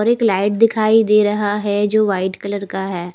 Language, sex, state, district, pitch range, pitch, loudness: Hindi, female, Haryana, Rohtak, 200-215 Hz, 205 Hz, -16 LUFS